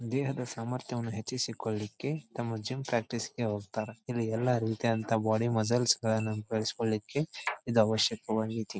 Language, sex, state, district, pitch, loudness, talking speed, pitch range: Kannada, male, Karnataka, Dharwad, 115 Hz, -32 LUFS, 125 wpm, 110-120 Hz